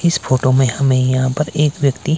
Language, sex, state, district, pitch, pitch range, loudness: Hindi, male, Himachal Pradesh, Shimla, 135 Hz, 130-150 Hz, -15 LUFS